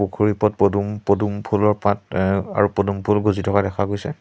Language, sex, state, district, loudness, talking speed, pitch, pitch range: Assamese, male, Assam, Sonitpur, -20 LUFS, 200 wpm, 100 Hz, 100-105 Hz